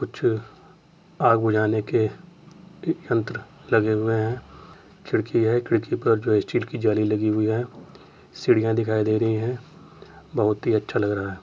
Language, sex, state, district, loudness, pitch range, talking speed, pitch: Hindi, male, Uttar Pradesh, Jyotiba Phule Nagar, -23 LUFS, 110-120 Hz, 155 wpm, 110 Hz